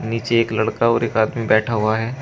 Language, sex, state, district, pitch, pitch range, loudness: Hindi, male, Uttar Pradesh, Shamli, 115 Hz, 110-115 Hz, -19 LUFS